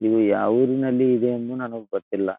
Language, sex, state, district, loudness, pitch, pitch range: Kannada, male, Karnataka, Dharwad, -22 LUFS, 120 Hz, 110-125 Hz